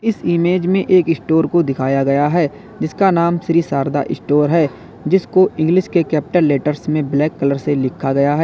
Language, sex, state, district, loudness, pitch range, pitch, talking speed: Hindi, male, Uttar Pradesh, Lalitpur, -16 LUFS, 145-175 Hz, 155 Hz, 190 wpm